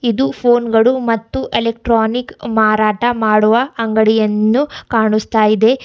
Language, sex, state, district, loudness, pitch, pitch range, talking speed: Kannada, female, Karnataka, Bidar, -14 LUFS, 225 Hz, 220-240 Hz, 105 wpm